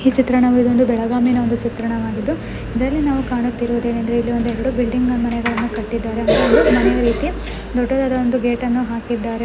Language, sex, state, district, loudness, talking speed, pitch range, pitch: Kannada, female, Karnataka, Belgaum, -18 LUFS, 115 wpm, 230-250 Hz, 240 Hz